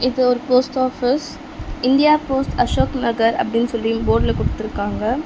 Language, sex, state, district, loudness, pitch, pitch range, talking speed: Tamil, female, Tamil Nadu, Chennai, -18 LUFS, 255 Hz, 235-265 Hz, 150 wpm